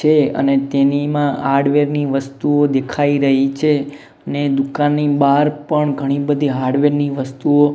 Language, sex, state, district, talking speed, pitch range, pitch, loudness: Gujarati, male, Gujarat, Gandhinagar, 140 wpm, 140-145 Hz, 145 Hz, -16 LUFS